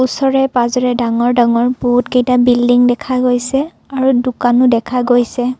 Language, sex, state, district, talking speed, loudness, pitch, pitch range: Assamese, female, Assam, Kamrup Metropolitan, 130 wpm, -13 LUFS, 250 Hz, 245-255 Hz